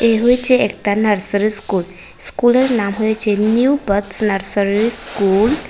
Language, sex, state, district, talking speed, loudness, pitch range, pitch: Bengali, female, Tripura, West Tripura, 135 wpm, -15 LUFS, 200-235 Hz, 210 Hz